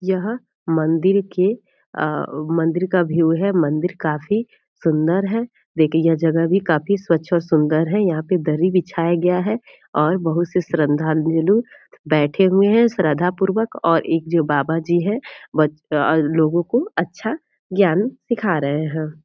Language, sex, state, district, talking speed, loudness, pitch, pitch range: Hindi, female, Bihar, Purnia, 155 wpm, -19 LUFS, 170 Hz, 160-195 Hz